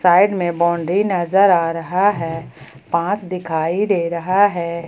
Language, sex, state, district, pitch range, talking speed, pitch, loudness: Hindi, female, Jharkhand, Ranchi, 165-190 Hz, 150 wpm, 170 Hz, -18 LUFS